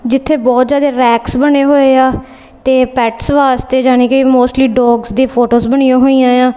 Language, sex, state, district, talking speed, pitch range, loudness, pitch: Punjabi, female, Punjab, Kapurthala, 175 wpm, 250-265 Hz, -10 LUFS, 260 Hz